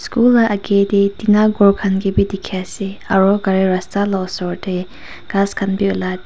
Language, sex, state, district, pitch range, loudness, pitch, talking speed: Nagamese, female, Nagaland, Kohima, 190-200 Hz, -16 LUFS, 195 Hz, 210 wpm